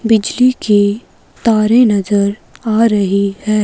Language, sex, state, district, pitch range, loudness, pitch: Hindi, male, Himachal Pradesh, Shimla, 200-230 Hz, -13 LUFS, 215 Hz